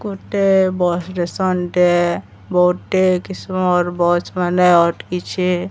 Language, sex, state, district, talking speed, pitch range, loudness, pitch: Odia, male, Odisha, Sambalpur, 95 wpm, 175-185 Hz, -17 LUFS, 180 Hz